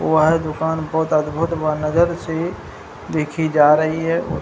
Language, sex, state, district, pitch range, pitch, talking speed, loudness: Hindi, male, Bihar, Jahanabad, 155-165 Hz, 160 Hz, 175 wpm, -19 LUFS